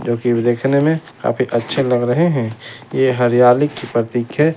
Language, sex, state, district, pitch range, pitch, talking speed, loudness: Hindi, male, Bihar, West Champaran, 120-140 Hz, 125 Hz, 195 wpm, -16 LUFS